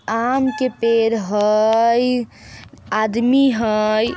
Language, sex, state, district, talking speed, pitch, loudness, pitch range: Bajjika, female, Bihar, Vaishali, 85 wpm, 225 Hz, -17 LUFS, 215-240 Hz